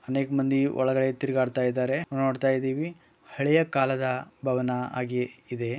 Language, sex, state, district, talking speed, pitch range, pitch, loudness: Kannada, male, Karnataka, Bellary, 135 wpm, 125-135 Hz, 130 Hz, -27 LUFS